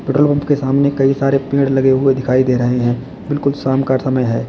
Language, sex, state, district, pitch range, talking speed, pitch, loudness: Hindi, male, Uttar Pradesh, Lalitpur, 130-140 Hz, 240 wpm, 135 Hz, -15 LUFS